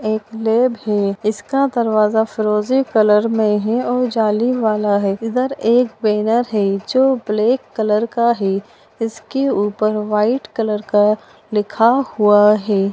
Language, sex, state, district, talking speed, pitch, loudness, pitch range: Bhojpuri, female, Bihar, Saran, 140 wpm, 220 Hz, -17 LUFS, 210-235 Hz